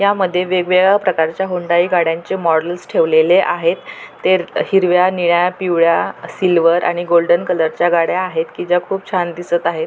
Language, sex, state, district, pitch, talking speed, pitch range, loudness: Marathi, female, Maharashtra, Pune, 175 Hz, 160 wpm, 170-185 Hz, -15 LUFS